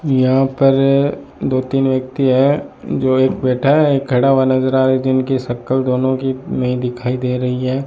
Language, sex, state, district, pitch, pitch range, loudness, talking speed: Hindi, male, Rajasthan, Bikaner, 130 Hz, 130-135 Hz, -16 LUFS, 200 wpm